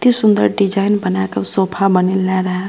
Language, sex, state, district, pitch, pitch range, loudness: Maithili, female, Bihar, Purnia, 190 Hz, 185-200 Hz, -15 LUFS